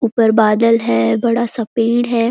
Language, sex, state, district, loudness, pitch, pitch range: Hindi, female, Chhattisgarh, Korba, -15 LUFS, 230 Hz, 220-235 Hz